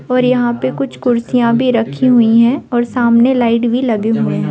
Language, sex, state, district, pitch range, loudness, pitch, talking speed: Bhojpuri, female, Bihar, Saran, 230-250 Hz, -13 LUFS, 240 Hz, 210 wpm